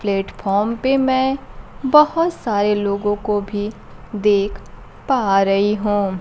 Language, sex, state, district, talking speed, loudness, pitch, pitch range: Hindi, female, Bihar, Kaimur, 115 wpm, -18 LUFS, 205 Hz, 200-260 Hz